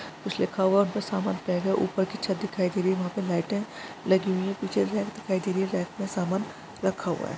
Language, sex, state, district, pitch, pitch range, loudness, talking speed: Hindi, male, Jharkhand, Jamtara, 190 Hz, 185-205 Hz, -28 LUFS, 275 wpm